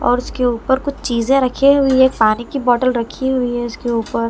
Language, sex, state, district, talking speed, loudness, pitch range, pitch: Hindi, female, Delhi, New Delhi, 235 wpm, -16 LUFS, 240-265 Hz, 250 Hz